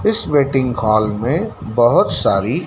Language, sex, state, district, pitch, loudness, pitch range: Hindi, male, Madhya Pradesh, Dhar, 125 Hz, -16 LUFS, 110-150 Hz